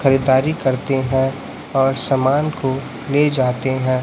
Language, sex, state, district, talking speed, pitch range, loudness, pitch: Hindi, male, Chhattisgarh, Raipur, 135 wpm, 130-140 Hz, -18 LUFS, 135 Hz